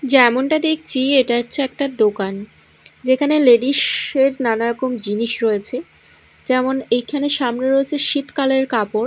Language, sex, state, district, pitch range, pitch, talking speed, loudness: Bengali, female, Odisha, Malkangiri, 235-275 Hz, 260 Hz, 120 wpm, -17 LUFS